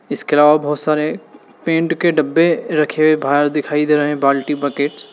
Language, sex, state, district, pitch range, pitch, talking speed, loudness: Hindi, male, Uttar Pradesh, Lalitpur, 145-155 Hz, 150 Hz, 200 wpm, -16 LUFS